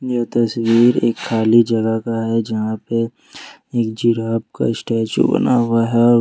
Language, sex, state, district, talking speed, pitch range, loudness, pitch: Hindi, male, Jharkhand, Ranchi, 155 wpm, 115-120 Hz, -17 LUFS, 115 Hz